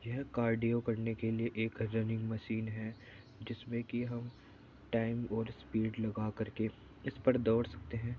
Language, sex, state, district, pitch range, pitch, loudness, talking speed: Hindi, male, Uttar Pradesh, Jyotiba Phule Nagar, 110-120 Hz, 115 Hz, -37 LUFS, 170 wpm